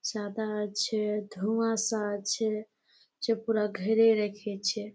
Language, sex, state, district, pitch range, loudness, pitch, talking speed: Bengali, female, West Bengal, Jalpaiguri, 210-220 Hz, -29 LUFS, 215 Hz, 85 wpm